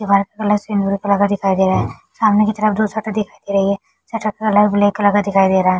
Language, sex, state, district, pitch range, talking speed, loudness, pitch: Hindi, female, Chhattisgarh, Bilaspur, 200-215 Hz, 270 wpm, -16 LUFS, 205 Hz